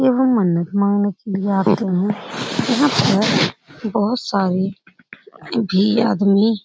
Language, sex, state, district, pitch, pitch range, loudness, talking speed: Hindi, female, Bihar, Supaul, 200 Hz, 195-225 Hz, -18 LUFS, 125 wpm